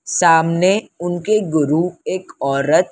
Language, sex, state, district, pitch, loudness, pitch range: Hindi, female, Maharashtra, Mumbai Suburban, 175 Hz, -17 LUFS, 160-185 Hz